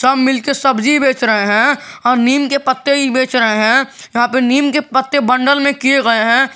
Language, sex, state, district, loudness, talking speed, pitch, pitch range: Hindi, male, Jharkhand, Garhwa, -13 LUFS, 220 wpm, 265 Hz, 245-280 Hz